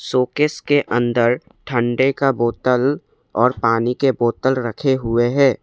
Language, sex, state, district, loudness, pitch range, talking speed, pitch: Hindi, male, Assam, Kamrup Metropolitan, -18 LUFS, 120-135 Hz, 150 wpm, 125 Hz